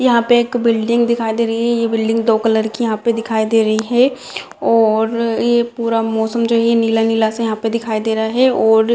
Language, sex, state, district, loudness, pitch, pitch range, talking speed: Hindi, female, Bihar, Madhepura, -15 LUFS, 230 Hz, 220-235 Hz, 230 wpm